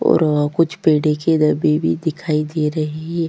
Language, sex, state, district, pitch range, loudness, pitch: Hindi, female, Chhattisgarh, Sukma, 150-160 Hz, -18 LUFS, 155 Hz